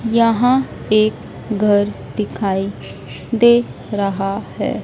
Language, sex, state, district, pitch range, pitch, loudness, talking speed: Hindi, female, Madhya Pradesh, Dhar, 200-230 Hz, 215 Hz, -17 LUFS, 85 wpm